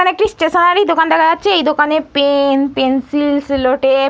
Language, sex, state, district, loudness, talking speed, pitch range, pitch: Bengali, female, West Bengal, Purulia, -13 LUFS, 175 wpm, 275-335 Hz, 295 Hz